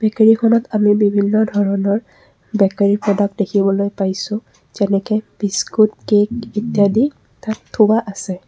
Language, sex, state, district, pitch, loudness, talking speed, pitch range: Assamese, female, Assam, Kamrup Metropolitan, 205 Hz, -17 LUFS, 105 wpm, 200-220 Hz